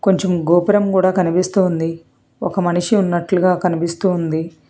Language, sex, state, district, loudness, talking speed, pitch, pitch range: Telugu, female, Telangana, Hyderabad, -17 LUFS, 100 wpm, 180 Hz, 170-185 Hz